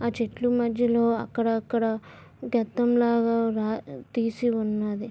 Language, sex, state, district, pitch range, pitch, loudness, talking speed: Telugu, female, Andhra Pradesh, Visakhapatnam, 220-235 Hz, 230 Hz, -26 LUFS, 105 wpm